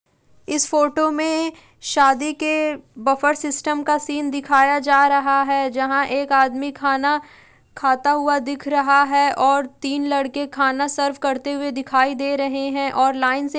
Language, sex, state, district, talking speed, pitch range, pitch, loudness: Hindi, female, Uttar Pradesh, Jalaun, 165 wpm, 275-290 Hz, 280 Hz, -19 LUFS